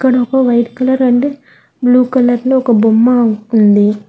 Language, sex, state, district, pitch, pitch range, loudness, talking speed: Telugu, female, Telangana, Hyderabad, 245 Hz, 225-260 Hz, -11 LUFS, 160 wpm